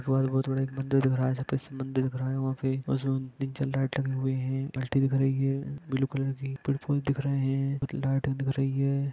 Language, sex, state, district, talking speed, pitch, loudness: Hindi, male, Jharkhand, Sahebganj, 185 wpm, 135 Hz, -29 LUFS